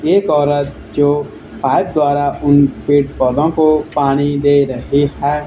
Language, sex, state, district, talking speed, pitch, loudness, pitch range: Hindi, male, Haryana, Charkhi Dadri, 145 wpm, 145 Hz, -14 LUFS, 140-145 Hz